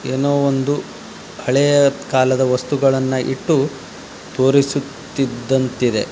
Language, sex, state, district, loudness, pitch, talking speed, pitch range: Kannada, male, Karnataka, Dharwad, -17 LUFS, 135 Hz, 80 wpm, 130-140 Hz